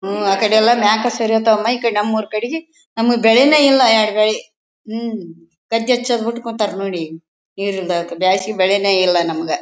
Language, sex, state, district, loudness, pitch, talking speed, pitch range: Kannada, female, Karnataka, Bellary, -16 LUFS, 215 Hz, 130 wpm, 190-230 Hz